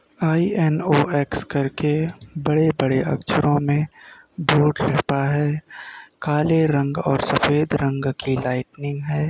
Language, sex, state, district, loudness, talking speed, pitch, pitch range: Hindi, male, Uttar Pradesh, Gorakhpur, -21 LUFS, 125 wpm, 145 Hz, 140-155 Hz